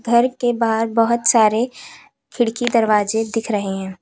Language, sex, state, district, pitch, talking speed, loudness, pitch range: Hindi, female, Uttar Pradesh, Lalitpur, 230 Hz, 150 wpm, -18 LUFS, 215-235 Hz